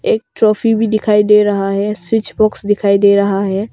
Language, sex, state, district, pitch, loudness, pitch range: Hindi, female, Arunachal Pradesh, Longding, 210 Hz, -13 LUFS, 200-220 Hz